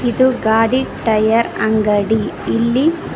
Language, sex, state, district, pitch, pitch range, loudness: Kannada, female, Karnataka, Koppal, 230 Hz, 220-255 Hz, -15 LUFS